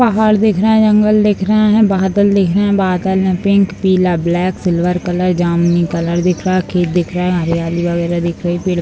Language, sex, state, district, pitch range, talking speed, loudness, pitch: Hindi, female, Bihar, Purnia, 175-200 Hz, 225 wpm, -14 LUFS, 185 Hz